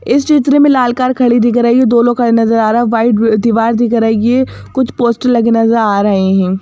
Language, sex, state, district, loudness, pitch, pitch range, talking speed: Hindi, female, Madhya Pradesh, Bhopal, -11 LUFS, 235 Hz, 225-245 Hz, 245 wpm